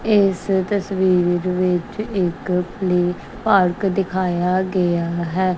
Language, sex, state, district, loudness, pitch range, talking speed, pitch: Punjabi, female, Punjab, Kapurthala, -19 LUFS, 180-195 Hz, 95 wpm, 185 Hz